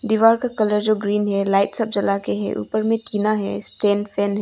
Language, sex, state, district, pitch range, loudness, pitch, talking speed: Hindi, female, Arunachal Pradesh, Longding, 195-215 Hz, -20 LUFS, 205 Hz, 230 wpm